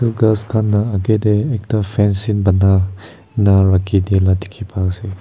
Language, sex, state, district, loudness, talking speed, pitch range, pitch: Nagamese, male, Nagaland, Kohima, -16 LUFS, 140 wpm, 95-110 Hz, 100 Hz